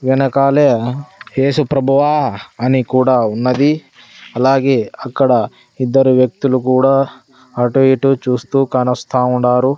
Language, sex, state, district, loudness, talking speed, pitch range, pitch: Telugu, male, Andhra Pradesh, Sri Satya Sai, -14 LUFS, 85 wpm, 125-135 Hz, 130 Hz